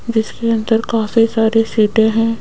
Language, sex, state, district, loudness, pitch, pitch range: Hindi, female, Rajasthan, Jaipur, -15 LUFS, 225 Hz, 220-230 Hz